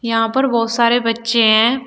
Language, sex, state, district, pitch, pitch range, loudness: Hindi, female, Uttar Pradesh, Shamli, 230 Hz, 230-240 Hz, -15 LUFS